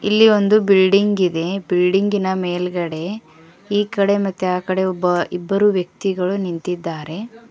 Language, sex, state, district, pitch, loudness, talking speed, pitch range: Kannada, female, Karnataka, Koppal, 190 Hz, -18 LUFS, 120 wpm, 180-200 Hz